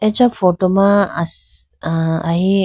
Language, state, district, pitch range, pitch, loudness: Idu Mishmi, Arunachal Pradesh, Lower Dibang Valley, 165-200 Hz, 185 Hz, -16 LUFS